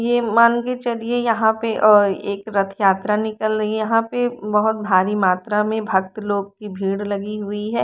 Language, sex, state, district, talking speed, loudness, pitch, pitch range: Hindi, female, Haryana, Rohtak, 190 wpm, -19 LUFS, 215 Hz, 200-225 Hz